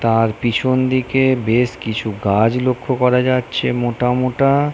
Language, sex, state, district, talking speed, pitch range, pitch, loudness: Bengali, male, West Bengal, North 24 Parganas, 140 wpm, 115-130 Hz, 125 Hz, -17 LUFS